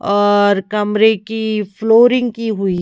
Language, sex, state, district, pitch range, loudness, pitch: Hindi, female, Himachal Pradesh, Shimla, 205-225 Hz, -14 LUFS, 215 Hz